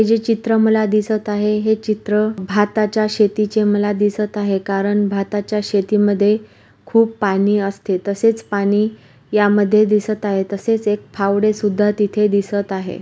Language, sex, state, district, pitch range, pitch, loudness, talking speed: Marathi, female, Maharashtra, Pune, 200-215 Hz, 210 Hz, -17 LUFS, 140 wpm